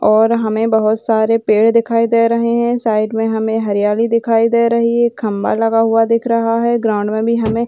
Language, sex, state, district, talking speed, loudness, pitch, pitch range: Hindi, female, Bihar, Gaya, 220 wpm, -14 LUFS, 225 Hz, 220-230 Hz